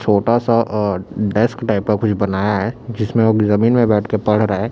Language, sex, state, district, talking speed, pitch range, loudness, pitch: Hindi, male, Chhattisgarh, Raipur, 215 wpm, 105-115 Hz, -17 LUFS, 110 Hz